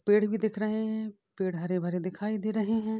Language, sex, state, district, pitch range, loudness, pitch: Hindi, female, Uttar Pradesh, Deoria, 190-220 Hz, -30 LUFS, 215 Hz